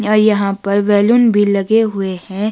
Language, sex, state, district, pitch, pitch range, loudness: Hindi, female, Himachal Pradesh, Shimla, 205 Hz, 200-215 Hz, -14 LUFS